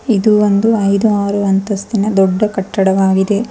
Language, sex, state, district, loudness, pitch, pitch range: Kannada, female, Karnataka, Bangalore, -13 LUFS, 205 Hz, 195-210 Hz